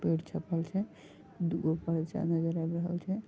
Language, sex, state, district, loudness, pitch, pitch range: Maithili, female, Bihar, Vaishali, -34 LUFS, 170 Hz, 165-180 Hz